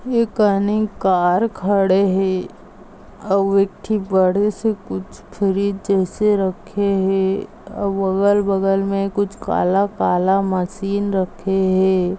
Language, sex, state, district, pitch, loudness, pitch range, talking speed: Hindi, female, Maharashtra, Sindhudurg, 195 Hz, -18 LUFS, 190-205 Hz, 110 wpm